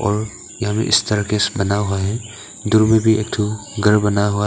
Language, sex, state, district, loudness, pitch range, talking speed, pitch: Hindi, male, Arunachal Pradesh, Papum Pare, -18 LUFS, 105-110 Hz, 230 wpm, 105 Hz